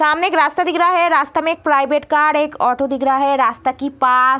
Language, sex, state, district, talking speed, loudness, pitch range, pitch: Hindi, female, Bihar, Kishanganj, 270 wpm, -15 LUFS, 275-325 Hz, 295 Hz